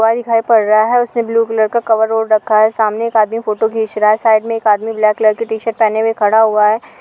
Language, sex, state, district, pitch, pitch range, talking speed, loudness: Bhojpuri, female, Bihar, Saran, 220 Hz, 215-230 Hz, 285 wpm, -13 LUFS